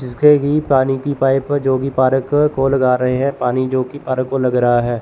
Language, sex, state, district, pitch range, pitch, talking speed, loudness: Hindi, male, Chandigarh, Chandigarh, 130-140 Hz, 135 Hz, 240 wpm, -16 LUFS